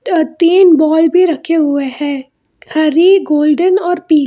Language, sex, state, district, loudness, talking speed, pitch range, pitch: Hindi, female, Karnataka, Bangalore, -11 LUFS, 155 wpm, 300-355 Hz, 320 Hz